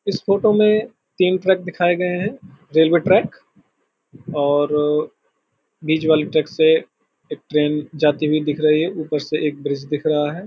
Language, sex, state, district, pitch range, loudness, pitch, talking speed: Hindi, male, Uttar Pradesh, Hamirpur, 150-185 Hz, -18 LUFS, 155 Hz, 160 wpm